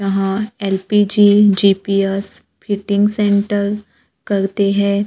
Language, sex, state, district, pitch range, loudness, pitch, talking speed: Hindi, male, Maharashtra, Gondia, 195-205 Hz, -16 LUFS, 200 Hz, 85 wpm